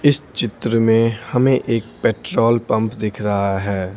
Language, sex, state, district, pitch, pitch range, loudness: Hindi, male, Bihar, Patna, 115 Hz, 105-115 Hz, -18 LUFS